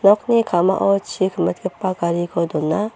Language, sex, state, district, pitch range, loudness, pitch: Garo, female, Meghalaya, North Garo Hills, 175-200 Hz, -19 LUFS, 185 Hz